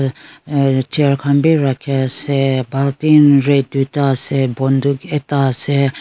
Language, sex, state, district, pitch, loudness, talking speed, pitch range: Nagamese, female, Nagaland, Kohima, 140 Hz, -15 LUFS, 130 wpm, 135-145 Hz